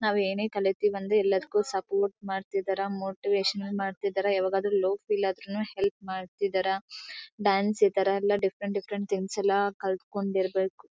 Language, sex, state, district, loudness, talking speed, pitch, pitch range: Kannada, female, Karnataka, Bellary, -28 LUFS, 130 wpm, 200 Hz, 195-205 Hz